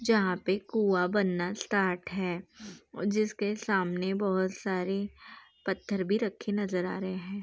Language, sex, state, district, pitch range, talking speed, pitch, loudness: Hindi, female, Uttar Pradesh, Jalaun, 185-205 Hz, 135 wpm, 195 Hz, -31 LUFS